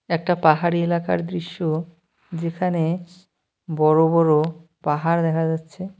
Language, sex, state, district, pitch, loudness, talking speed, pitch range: Bengali, male, West Bengal, Cooch Behar, 165 Hz, -21 LUFS, 100 wpm, 160-175 Hz